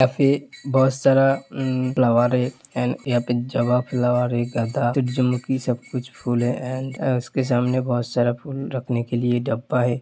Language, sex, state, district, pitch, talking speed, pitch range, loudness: Hindi, male, Uttar Pradesh, Hamirpur, 125 Hz, 170 wpm, 120-130 Hz, -22 LUFS